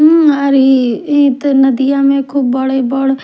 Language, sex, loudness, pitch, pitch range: Bhojpuri, female, -11 LUFS, 270 Hz, 265-280 Hz